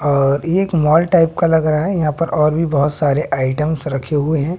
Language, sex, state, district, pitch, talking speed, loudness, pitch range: Hindi, male, Bihar, West Champaran, 150 Hz, 250 wpm, -16 LUFS, 145-165 Hz